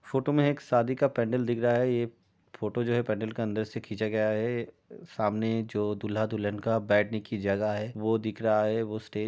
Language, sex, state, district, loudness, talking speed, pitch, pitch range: Hindi, male, Uttar Pradesh, Jyotiba Phule Nagar, -29 LUFS, 225 wpm, 110 Hz, 105-120 Hz